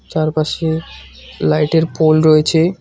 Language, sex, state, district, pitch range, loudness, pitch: Bengali, male, West Bengal, Cooch Behar, 155-160 Hz, -15 LUFS, 155 Hz